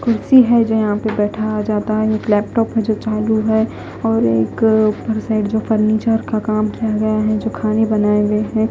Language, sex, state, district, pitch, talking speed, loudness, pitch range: Hindi, female, Haryana, Jhajjar, 215 Hz, 205 wpm, -16 LUFS, 215-220 Hz